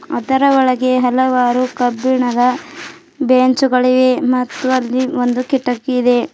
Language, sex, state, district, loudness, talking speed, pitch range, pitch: Kannada, female, Karnataka, Bidar, -14 LUFS, 95 wpm, 250-260 Hz, 255 Hz